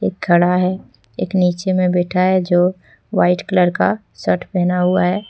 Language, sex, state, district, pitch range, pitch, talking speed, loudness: Hindi, female, Jharkhand, Deoghar, 180-185 Hz, 180 Hz, 170 wpm, -17 LUFS